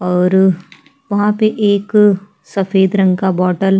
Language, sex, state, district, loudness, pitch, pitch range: Hindi, female, Chhattisgarh, Sukma, -14 LUFS, 195 Hz, 190-205 Hz